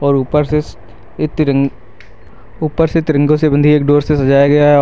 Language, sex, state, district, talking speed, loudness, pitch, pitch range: Hindi, male, Uttar Pradesh, Lucknow, 235 wpm, -13 LUFS, 145 Hz, 125-150 Hz